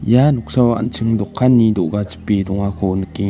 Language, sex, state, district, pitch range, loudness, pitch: Garo, male, Meghalaya, West Garo Hills, 100-120 Hz, -16 LUFS, 105 Hz